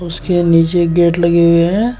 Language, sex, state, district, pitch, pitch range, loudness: Hindi, male, Uttar Pradesh, Shamli, 170 Hz, 170-175 Hz, -12 LUFS